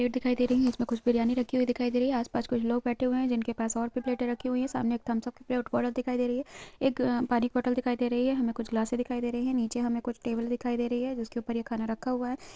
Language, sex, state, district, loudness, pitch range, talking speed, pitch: Hindi, female, Chhattisgarh, Sukma, -30 LUFS, 235-250 Hz, 320 wpm, 245 Hz